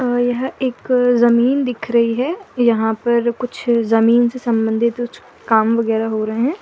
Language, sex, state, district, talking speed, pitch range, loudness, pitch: Hindi, female, Madhya Pradesh, Bhopal, 170 wpm, 230-250 Hz, -17 LUFS, 240 Hz